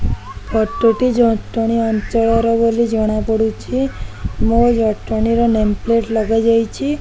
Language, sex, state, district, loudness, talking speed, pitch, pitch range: Odia, female, Odisha, Khordha, -16 LUFS, 145 wpm, 225 Hz, 220-230 Hz